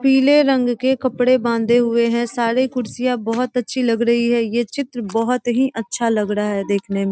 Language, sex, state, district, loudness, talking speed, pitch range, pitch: Hindi, female, Bihar, East Champaran, -18 LUFS, 200 wpm, 230-255 Hz, 240 Hz